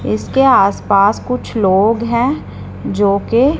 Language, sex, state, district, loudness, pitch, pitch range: Hindi, female, Punjab, Fazilka, -14 LUFS, 220 Hz, 200-250 Hz